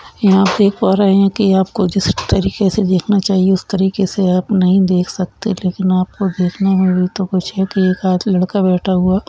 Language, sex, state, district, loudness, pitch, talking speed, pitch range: Hindi, female, Uttarakhand, Tehri Garhwal, -15 LUFS, 190 Hz, 220 wpm, 185-195 Hz